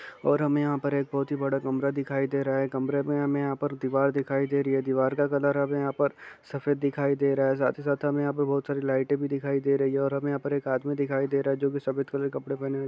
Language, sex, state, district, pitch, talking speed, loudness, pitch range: Hindi, male, Bihar, Vaishali, 140 Hz, 310 wpm, -27 LUFS, 135-140 Hz